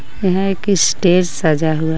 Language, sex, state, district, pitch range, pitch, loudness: Hindi, female, Jharkhand, Garhwa, 160-190 Hz, 180 Hz, -15 LUFS